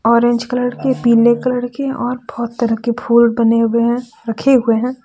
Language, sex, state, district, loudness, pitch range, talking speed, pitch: Hindi, female, Jharkhand, Deoghar, -15 LUFS, 235-250 Hz, 200 wpm, 235 Hz